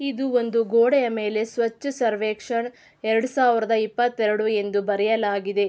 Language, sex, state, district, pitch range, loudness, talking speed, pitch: Kannada, female, Karnataka, Mysore, 215-245 Hz, -23 LUFS, 115 wpm, 225 Hz